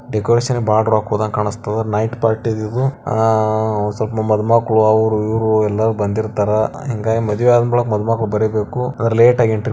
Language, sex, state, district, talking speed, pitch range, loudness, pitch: Kannada, male, Karnataka, Bijapur, 150 wpm, 110-115 Hz, -16 LUFS, 110 Hz